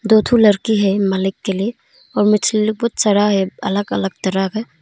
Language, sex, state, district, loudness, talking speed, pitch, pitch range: Hindi, female, Arunachal Pradesh, Longding, -17 LUFS, 100 wpm, 205 Hz, 195-220 Hz